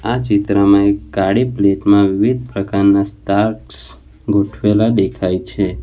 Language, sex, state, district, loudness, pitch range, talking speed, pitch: Gujarati, male, Gujarat, Valsad, -15 LUFS, 100-105 Hz, 125 wpm, 100 Hz